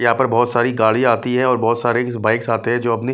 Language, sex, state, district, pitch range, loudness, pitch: Hindi, male, Bihar, West Champaran, 115-125 Hz, -17 LUFS, 120 Hz